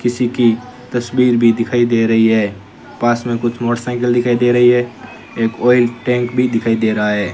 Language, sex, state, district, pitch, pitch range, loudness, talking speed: Hindi, male, Rajasthan, Bikaner, 120 Hz, 115-125 Hz, -15 LUFS, 195 wpm